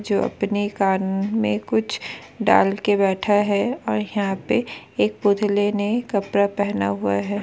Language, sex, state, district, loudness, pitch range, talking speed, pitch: Hindi, female, Bihar, Bhagalpur, -21 LUFS, 195-205 Hz, 155 wpm, 200 Hz